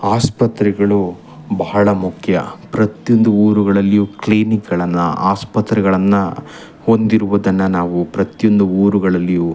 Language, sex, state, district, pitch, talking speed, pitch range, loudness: Kannada, male, Karnataka, Chamarajanagar, 100 Hz, 80 wpm, 95-110 Hz, -15 LUFS